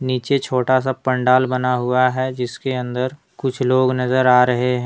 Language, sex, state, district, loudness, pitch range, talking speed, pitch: Hindi, male, Jharkhand, Deoghar, -18 LUFS, 125-130 Hz, 185 wpm, 130 Hz